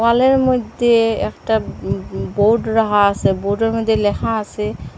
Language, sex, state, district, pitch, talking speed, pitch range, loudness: Bengali, female, Assam, Hailakandi, 220 Hz, 145 wpm, 210-230 Hz, -17 LUFS